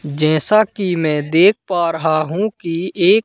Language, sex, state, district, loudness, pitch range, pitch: Hindi, male, Madhya Pradesh, Katni, -16 LUFS, 155-195 Hz, 170 Hz